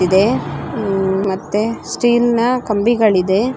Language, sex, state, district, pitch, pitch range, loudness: Kannada, female, Karnataka, Dharwad, 210 Hz, 195-240 Hz, -16 LUFS